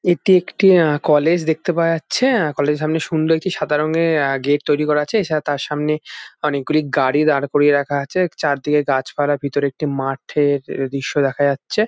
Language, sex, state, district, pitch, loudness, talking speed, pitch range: Bengali, male, West Bengal, Jalpaiguri, 150 Hz, -18 LUFS, 185 wpm, 140-165 Hz